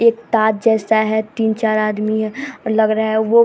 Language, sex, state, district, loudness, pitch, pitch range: Hindi, female, Bihar, Vaishali, -17 LUFS, 220 Hz, 220-225 Hz